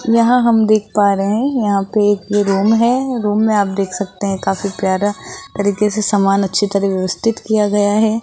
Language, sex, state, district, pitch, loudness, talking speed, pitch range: Hindi, female, Rajasthan, Jaipur, 205 Hz, -15 LUFS, 210 wpm, 200-220 Hz